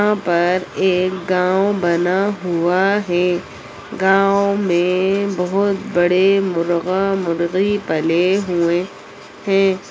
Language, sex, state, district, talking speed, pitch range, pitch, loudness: Hindi, female, Bihar, Jamui, 90 wpm, 175-195 Hz, 185 Hz, -17 LUFS